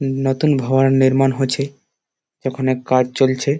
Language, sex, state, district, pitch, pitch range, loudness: Bengali, male, West Bengal, Malda, 135 Hz, 130-135 Hz, -17 LUFS